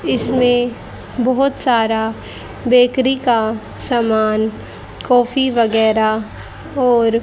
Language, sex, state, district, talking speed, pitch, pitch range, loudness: Hindi, female, Haryana, Charkhi Dadri, 75 wpm, 240 Hz, 220-250 Hz, -16 LUFS